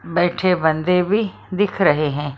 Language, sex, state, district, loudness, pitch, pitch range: Hindi, female, Maharashtra, Mumbai Suburban, -18 LUFS, 175 Hz, 155-185 Hz